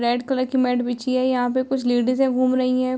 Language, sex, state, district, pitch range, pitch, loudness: Hindi, female, Uttar Pradesh, Hamirpur, 245-255 Hz, 255 Hz, -21 LUFS